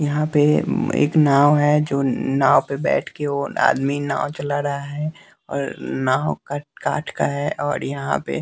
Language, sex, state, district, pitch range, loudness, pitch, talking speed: Hindi, male, Bihar, West Champaran, 135-145 Hz, -20 LUFS, 145 Hz, 170 wpm